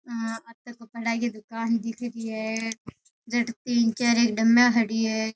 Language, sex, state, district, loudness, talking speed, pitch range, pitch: Rajasthani, female, Rajasthan, Nagaur, -25 LUFS, 145 wpm, 225-235 Hz, 230 Hz